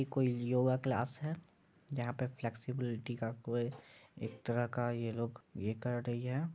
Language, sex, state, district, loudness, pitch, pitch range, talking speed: Hindi, male, Bihar, Madhepura, -38 LUFS, 120 Hz, 115-130 Hz, 175 wpm